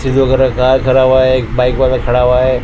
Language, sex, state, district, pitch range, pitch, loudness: Hindi, male, Maharashtra, Mumbai Suburban, 125-130 Hz, 130 Hz, -11 LUFS